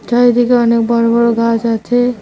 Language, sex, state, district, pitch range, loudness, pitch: Bengali, female, West Bengal, Cooch Behar, 230-245 Hz, -12 LUFS, 235 Hz